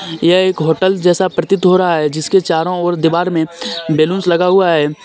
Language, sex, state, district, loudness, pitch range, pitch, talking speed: Hindi, male, Jharkhand, Deoghar, -13 LUFS, 160-185 Hz, 175 Hz, 215 wpm